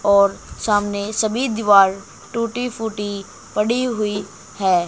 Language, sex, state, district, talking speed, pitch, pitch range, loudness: Hindi, female, Haryana, Charkhi Dadri, 110 wpm, 210 Hz, 200-225 Hz, -20 LUFS